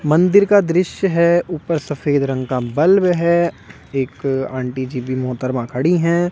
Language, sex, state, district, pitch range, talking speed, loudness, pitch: Hindi, male, Delhi, New Delhi, 130-175 Hz, 160 wpm, -17 LUFS, 155 Hz